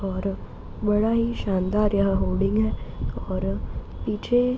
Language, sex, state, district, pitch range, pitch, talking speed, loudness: Hindi, female, Bihar, East Champaran, 195-225 Hz, 210 Hz, 130 wpm, -25 LUFS